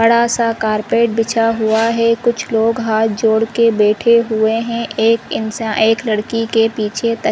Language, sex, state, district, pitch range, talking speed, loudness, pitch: Hindi, female, Chhattisgarh, Rajnandgaon, 220-230 Hz, 180 wpm, -15 LUFS, 225 Hz